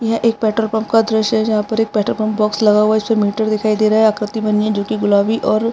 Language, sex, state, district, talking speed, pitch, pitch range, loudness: Hindi, male, Uttarakhand, Tehri Garhwal, 315 wpm, 215 Hz, 210-220 Hz, -16 LUFS